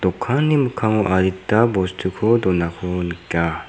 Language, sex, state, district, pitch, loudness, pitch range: Garo, male, Meghalaya, South Garo Hills, 95 Hz, -19 LUFS, 90-115 Hz